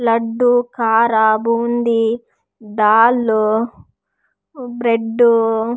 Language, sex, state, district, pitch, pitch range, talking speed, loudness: Kannada, female, Karnataka, Raichur, 230 Hz, 225-240 Hz, 60 wpm, -15 LUFS